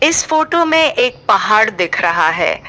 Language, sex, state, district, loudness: Hindi, female, Uttar Pradesh, Shamli, -13 LUFS